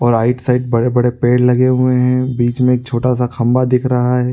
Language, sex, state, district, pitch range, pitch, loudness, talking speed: Hindi, male, Uttar Pradesh, Budaun, 120-125 Hz, 125 Hz, -14 LUFS, 235 wpm